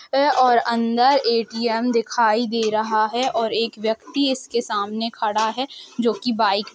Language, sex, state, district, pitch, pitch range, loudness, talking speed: Hindi, female, Uttar Pradesh, Jalaun, 230 Hz, 220-245 Hz, -20 LUFS, 160 wpm